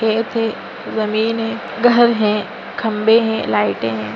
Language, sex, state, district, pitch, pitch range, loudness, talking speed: Hindi, female, Chhattisgarh, Bastar, 220 Hz, 210-225 Hz, -17 LUFS, 145 wpm